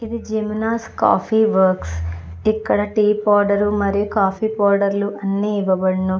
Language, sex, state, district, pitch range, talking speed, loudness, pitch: Telugu, female, Andhra Pradesh, Chittoor, 190-215 Hz, 125 wpm, -18 LUFS, 205 Hz